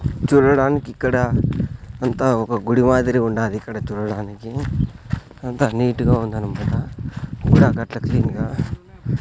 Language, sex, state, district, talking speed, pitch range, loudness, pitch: Telugu, male, Andhra Pradesh, Sri Satya Sai, 110 wpm, 115-135 Hz, -20 LUFS, 125 Hz